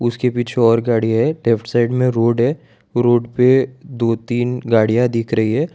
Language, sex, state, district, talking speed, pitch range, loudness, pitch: Hindi, male, Gujarat, Valsad, 190 wpm, 115-125 Hz, -17 LUFS, 120 Hz